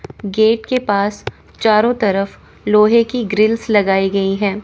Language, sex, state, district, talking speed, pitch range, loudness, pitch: Hindi, female, Chandigarh, Chandigarh, 140 wpm, 200-225 Hz, -15 LUFS, 210 Hz